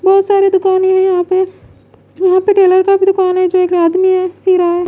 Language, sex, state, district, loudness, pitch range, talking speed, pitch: Hindi, female, Bihar, West Champaran, -11 LUFS, 370-385 Hz, 245 wpm, 375 Hz